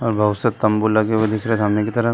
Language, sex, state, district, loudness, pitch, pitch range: Hindi, male, Uttar Pradesh, Jalaun, -18 LUFS, 110 Hz, 105-110 Hz